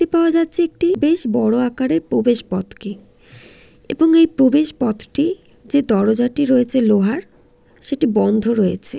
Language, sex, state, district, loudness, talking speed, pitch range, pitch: Bengali, female, West Bengal, Jalpaiguri, -17 LUFS, 135 wpm, 225-325 Hz, 260 Hz